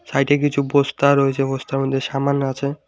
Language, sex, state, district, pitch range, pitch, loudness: Bengali, male, West Bengal, Alipurduar, 135-140 Hz, 140 Hz, -19 LUFS